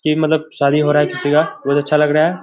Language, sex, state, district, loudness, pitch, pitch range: Hindi, male, Bihar, Kishanganj, -15 LUFS, 150 Hz, 145-155 Hz